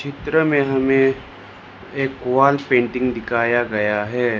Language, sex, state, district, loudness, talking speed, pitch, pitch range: Hindi, male, Arunachal Pradesh, Lower Dibang Valley, -19 LUFS, 110 wpm, 125 Hz, 115-135 Hz